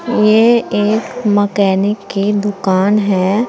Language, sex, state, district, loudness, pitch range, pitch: Hindi, female, Uttar Pradesh, Saharanpur, -14 LUFS, 200-220 Hz, 205 Hz